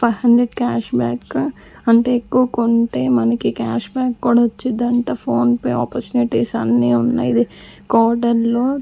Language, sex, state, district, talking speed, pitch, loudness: Telugu, female, Andhra Pradesh, Sri Satya Sai, 135 wpm, 230 Hz, -17 LUFS